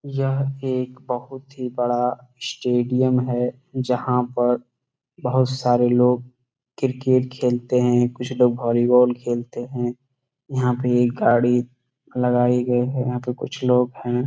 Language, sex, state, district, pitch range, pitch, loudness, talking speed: Hindi, male, Bihar, Saran, 120-130 Hz, 125 Hz, -21 LUFS, 135 wpm